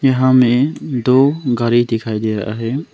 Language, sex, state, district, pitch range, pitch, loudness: Hindi, male, Arunachal Pradesh, Longding, 115-130 Hz, 125 Hz, -15 LUFS